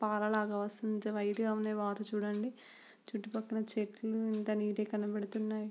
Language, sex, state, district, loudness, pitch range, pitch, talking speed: Telugu, female, Andhra Pradesh, Srikakulam, -36 LUFS, 210-220 Hz, 215 Hz, 155 wpm